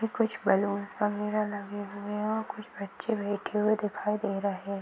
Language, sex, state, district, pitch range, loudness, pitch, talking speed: Hindi, female, Uttar Pradesh, Varanasi, 200-215 Hz, -31 LUFS, 210 Hz, 175 wpm